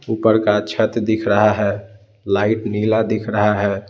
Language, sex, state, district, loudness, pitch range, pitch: Hindi, male, Bihar, Patna, -18 LUFS, 105-110 Hz, 105 Hz